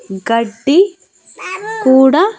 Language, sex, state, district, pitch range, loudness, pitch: Telugu, female, Andhra Pradesh, Annamaya, 230-380 Hz, -12 LUFS, 295 Hz